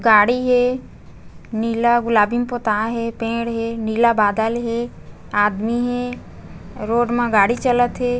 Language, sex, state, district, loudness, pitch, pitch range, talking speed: Chhattisgarhi, female, Chhattisgarh, Bastar, -19 LUFS, 235 Hz, 220-245 Hz, 140 wpm